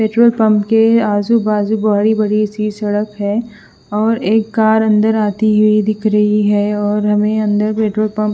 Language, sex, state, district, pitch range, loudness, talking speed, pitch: Hindi, female, Punjab, Fazilka, 210-220 Hz, -14 LUFS, 170 wpm, 215 Hz